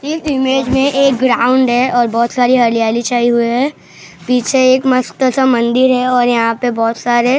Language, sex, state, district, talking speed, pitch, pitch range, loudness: Hindi, male, Maharashtra, Mumbai Suburban, 205 wpm, 250 Hz, 240-260 Hz, -13 LUFS